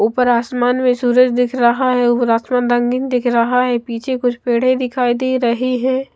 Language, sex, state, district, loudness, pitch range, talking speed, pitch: Hindi, female, Maharashtra, Mumbai Suburban, -16 LUFS, 240-255 Hz, 195 wpm, 245 Hz